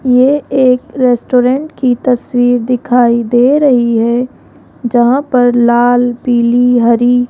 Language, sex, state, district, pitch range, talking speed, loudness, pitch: Hindi, female, Rajasthan, Jaipur, 240-255 Hz, 125 wpm, -11 LUFS, 245 Hz